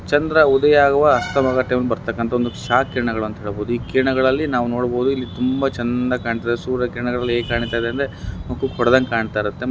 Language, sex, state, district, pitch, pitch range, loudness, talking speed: Kannada, male, Karnataka, Bellary, 125 Hz, 120-130 Hz, -19 LUFS, 165 wpm